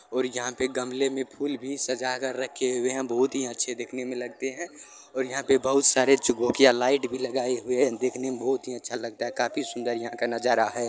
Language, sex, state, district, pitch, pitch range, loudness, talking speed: Hindi, male, Bihar, Saran, 130 Hz, 120-130 Hz, -26 LUFS, 235 wpm